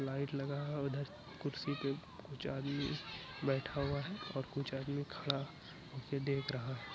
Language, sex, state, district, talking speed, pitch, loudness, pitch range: Hindi, male, Bihar, Araria, 165 wpm, 140 Hz, -41 LUFS, 135-145 Hz